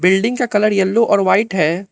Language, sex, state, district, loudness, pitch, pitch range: Hindi, male, Arunachal Pradesh, Lower Dibang Valley, -15 LUFS, 200 Hz, 190-215 Hz